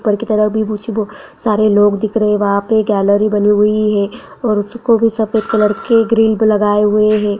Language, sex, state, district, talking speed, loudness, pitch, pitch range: Hindi, female, Bihar, Bhagalpur, 205 wpm, -14 LUFS, 215 Hz, 210-220 Hz